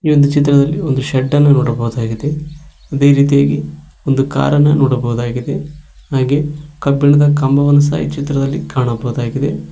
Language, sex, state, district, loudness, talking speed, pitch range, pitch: Kannada, male, Karnataka, Koppal, -14 LUFS, 105 wpm, 130-145 Hz, 140 Hz